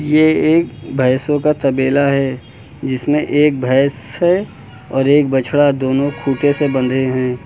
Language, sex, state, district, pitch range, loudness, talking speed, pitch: Hindi, male, Uttar Pradesh, Lucknow, 130-145 Hz, -15 LUFS, 145 wpm, 135 Hz